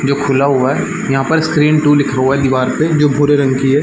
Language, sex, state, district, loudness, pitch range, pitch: Hindi, male, Chhattisgarh, Balrampur, -13 LUFS, 135-150 Hz, 140 Hz